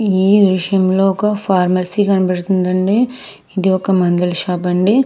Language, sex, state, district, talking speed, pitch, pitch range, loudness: Telugu, female, Andhra Pradesh, Krishna, 130 wpm, 190 Hz, 180-205 Hz, -15 LUFS